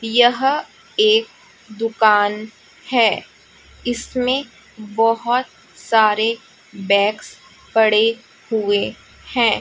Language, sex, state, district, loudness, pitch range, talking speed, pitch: Hindi, female, Chhattisgarh, Raipur, -18 LUFS, 215-245 Hz, 70 wpm, 225 Hz